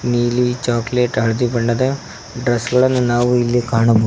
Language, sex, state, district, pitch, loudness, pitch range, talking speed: Kannada, male, Karnataka, Koppal, 120 Hz, -17 LUFS, 115-125 Hz, 150 wpm